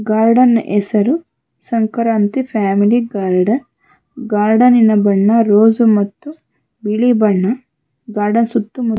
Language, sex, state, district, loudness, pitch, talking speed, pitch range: Kannada, female, Karnataka, Bangalore, -14 LUFS, 225 Hz, 95 wpm, 210-240 Hz